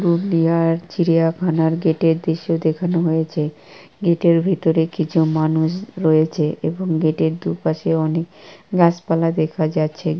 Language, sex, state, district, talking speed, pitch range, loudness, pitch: Bengali, male, West Bengal, Purulia, 125 wpm, 160-170 Hz, -19 LUFS, 165 Hz